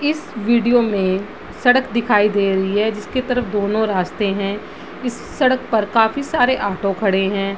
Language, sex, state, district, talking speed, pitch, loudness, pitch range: Hindi, female, Bihar, Madhepura, 175 wpm, 215 Hz, -18 LUFS, 200-245 Hz